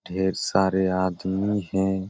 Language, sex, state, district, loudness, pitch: Hindi, male, Bihar, Supaul, -24 LUFS, 95 Hz